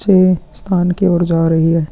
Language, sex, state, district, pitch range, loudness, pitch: Hindi, male, Chhattisgarh, Kabirdham, 165-185 Hz, -14 LUFS, 175 Hz